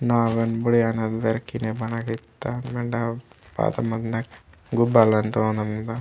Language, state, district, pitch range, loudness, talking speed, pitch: Gondi, Chhattisgarh, Sukma, 110-115 Hz, -24 LUFS, 140 wpm, 115 Hz